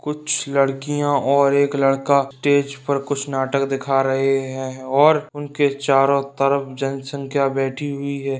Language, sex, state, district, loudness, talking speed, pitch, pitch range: Hindi, male, Bihar, Purnia, -20 LUFS, 145 wpm, 140 Hz, 135-140 Hz